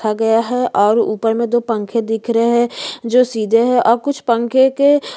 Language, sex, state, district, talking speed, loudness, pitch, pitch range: Hindi, female, Chhattisgarh, Jashpur, 175 wpm, -15 LUFS, 235 Hz, 225-245 Hz